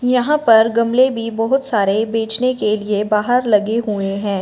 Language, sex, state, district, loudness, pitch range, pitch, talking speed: Hindi, female, Punjab, Fazilka, -16 LUFS, 210-245 Hz, 225 Hz, 175 wpm